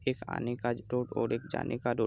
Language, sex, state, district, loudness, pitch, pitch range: Hindi, male, Bihar, Araria, -34 LUFS, 120 Hz, 120-125 Hz